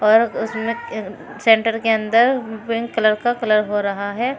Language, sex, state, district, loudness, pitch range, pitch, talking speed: Hindi, female, Uttar Pradesh, Shamli, -19 LUFS, 215-235 Hz, 225 Hz, 135 wpm